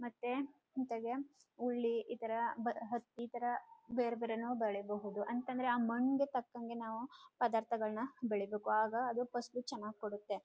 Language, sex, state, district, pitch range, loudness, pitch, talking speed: Kannada, female, Karnataka, Chamarajanagar, 225-245 Hz, -40 LUFS, 235 Hz, 120 wpm